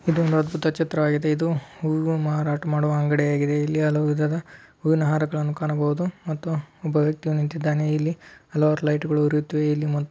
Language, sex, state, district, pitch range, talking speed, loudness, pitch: Kannada, male, Karnataka, Belgaum, 150-155 Hz, 165 wpm, -23 LUFS, 150 Hz